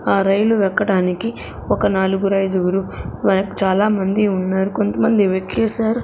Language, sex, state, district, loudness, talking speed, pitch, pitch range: Telugu, female, Andhra Pradesh, Sri Satya Sai, -18 LUFS, 120 wpm, 195 Hz, 190-210 Hz